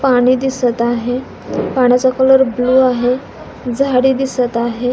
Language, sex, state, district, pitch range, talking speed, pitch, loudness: Marathi, female, Maharashtra, Pune, 245-260 Hz, 120 wpm, 250 Hz, -14 LUFS